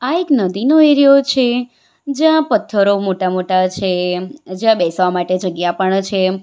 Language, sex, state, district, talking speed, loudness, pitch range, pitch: Gujarati, female, Gujarat, Valsad, 140 wpm, -15 LUFS, 185-270 Hz, 195 Hz